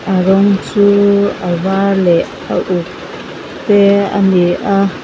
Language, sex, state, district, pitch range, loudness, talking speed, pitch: Mizo, female, Mizoram, Aizawl, 185-200 Hz, -12 LUFS, 145 wpm, 195 Hz